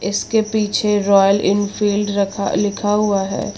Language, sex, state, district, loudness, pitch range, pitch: Hindi, female, Uttar Pradesh, Lucknow, -17 LUFS, 200-210 Hz, 205 Hz